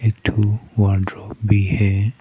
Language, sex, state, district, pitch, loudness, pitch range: Hindi, male, Arunachal Pradesh, Papum Pare, 105 Hz, -19 LUFS, 100-110 Hz